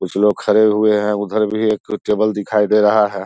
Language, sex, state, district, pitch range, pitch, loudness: Hindi, male, Bihar, Saharsa, 105-110 Hz, 105 Hz, -16 LUFS